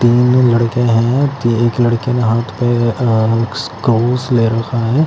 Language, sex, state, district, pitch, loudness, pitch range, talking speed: Hindi, male, Chandigarh, Chandigarh, 120 Hz, -14 LUFS, 115-125 Hz, 155 wpm